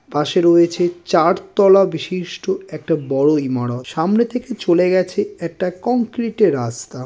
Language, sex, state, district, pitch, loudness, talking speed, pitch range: Bengali, male, West Bengal, North 24 Parganas, 175 Hz, -17 LUFS, 135 wpm, 155-195 Hz